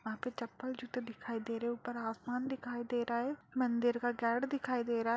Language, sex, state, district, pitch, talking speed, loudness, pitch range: Hindi, female, Bihar, Purnia, 240 Hz, 245 wpm, -37 LUFS, 235-250 Hz